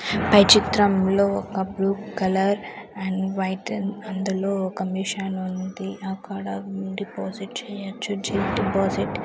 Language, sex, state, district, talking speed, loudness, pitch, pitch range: Telugu, female, Andhra Pradesh, Sri Satya Sai, 110 wpm, -23 LUFS, 195 Hz, 190-200 Hz